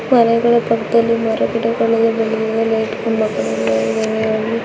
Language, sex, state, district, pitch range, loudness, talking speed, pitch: Kannada, female, Karnataka, Dakshina Kannada, 220-230 Hz, -16 LUFS, 130 wpm, 225 Hz